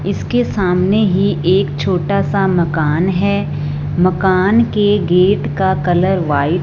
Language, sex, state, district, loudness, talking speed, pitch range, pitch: Hindi, female, Punjab, Fazilka, -15 LUFS, 125 wpm, 160-195 Hz, 180 Hz